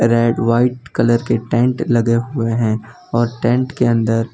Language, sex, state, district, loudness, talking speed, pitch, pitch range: Hindi, male, Gujarat, Valsad, -17 LUFS, 180 wpm, 115 Hz, 115-120 Hz